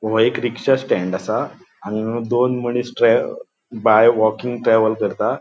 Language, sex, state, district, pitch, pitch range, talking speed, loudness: Konkani, male, Goa, North and South Goa, 115 Hz, 110-125 Hz, 145 wpm, -18 LUFS